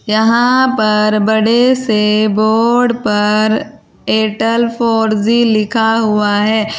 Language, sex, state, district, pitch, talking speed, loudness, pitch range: Hindi, female, Uttar Pradesh, Saharanpur, 220 Hz, 105 wpm, -12 LUFS, 215-235 Hz